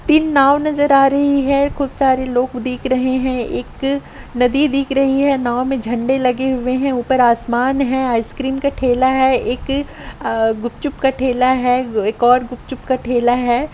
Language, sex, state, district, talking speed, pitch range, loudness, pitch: Hindi, female, Jharkhand, Sahebganj, 190 wpm, 250-275 Hz, -16 LUFS, 260 Hz